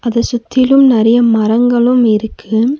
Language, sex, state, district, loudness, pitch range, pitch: Tamil, female, Tamil Nadu, Nilgiris, -11 LUFS, 225-250 Hz, 235 Hz